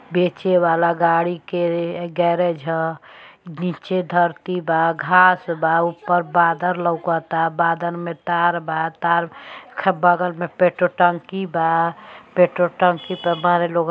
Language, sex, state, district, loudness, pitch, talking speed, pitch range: Bhojpuri, female, Uttar Pradesh, Gorakhpur, -19 LUFS, 170 Hz, 130 wpm, 165-180 Hz